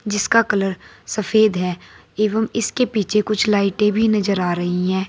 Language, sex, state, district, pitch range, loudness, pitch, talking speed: Hindi, female, Uttar Pradesh, Saharanpur, 190-215 Hz, -19 LUFS, 210 Hz, 165 wpm